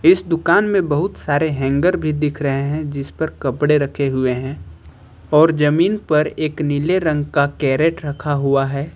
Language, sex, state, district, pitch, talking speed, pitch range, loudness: Hindi, male, Uttar Pradesh, Lucknow, 150 Hz, 180 wpm, 140-160 Hz, -18 LUFS